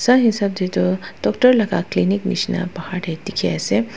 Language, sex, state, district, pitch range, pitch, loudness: Nagamese, female, Nagaland, Dimapur, 180-225 Hz, 200 Hz, -19 LUFS